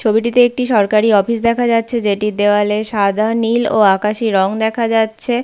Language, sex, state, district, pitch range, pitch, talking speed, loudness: Bengali, female, West Bengal, Paschim Medinipur, 210-235 Hz, 220 Hz, 165 wpm, -14 LUFS